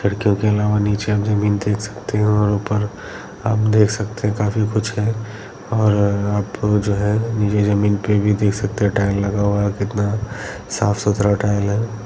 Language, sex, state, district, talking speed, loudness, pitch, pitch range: Hindi, male, Bihar, Bhagalpur, 190 wpm, -19 LUFS, 105 Hz, 100-105 Hz